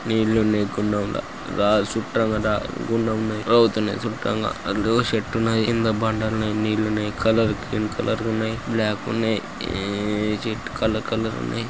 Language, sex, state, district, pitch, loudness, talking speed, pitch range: Telugu, male, Andhra Pradesh, Guntur, 110 Hz, -23 LUFS, 140 wpm, 105-110 Hz